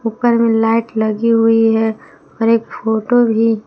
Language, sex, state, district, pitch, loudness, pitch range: Hindi, female, Jharkhand, Palamu, 225 Hz, -14 LUFS, 220-230 Hz